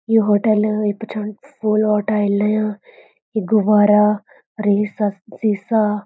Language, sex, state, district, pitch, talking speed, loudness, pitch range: Garhwali, female, Uttarakhand, Uttarkashi, 210 Hz, 130 wpm, -18 LUFS, 210-215 Hz